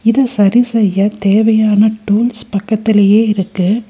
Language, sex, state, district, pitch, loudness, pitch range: Tamil, female, Tamil Nadu, Nilgiris, 215 Hz, -12 LUFS, 205-225 Hz